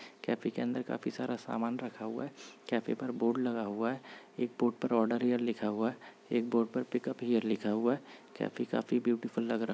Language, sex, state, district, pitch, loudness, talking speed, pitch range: Hindi, male, Goa, North and South Goa, 115 Hz, -34 LUFS, 230 wpm, 115-120 Hz